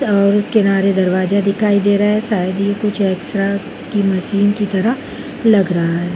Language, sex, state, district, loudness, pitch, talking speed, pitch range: Hindi, female, Chhattisgarh, Bilaspur, -16 LUFS, 200 Hz, 185 wpm, 190-205 Hz